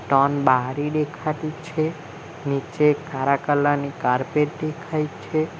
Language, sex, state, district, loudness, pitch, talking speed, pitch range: Gujarati, male, Gujarat, Valsad, -23 LUFS, 150 Hz, 120 wpm, 140-155 Hz